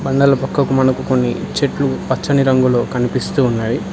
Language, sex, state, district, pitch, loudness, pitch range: Telugu, male, Telangana, Hyderabad, 130 Hz, -16 LUFS, 125-135 Hz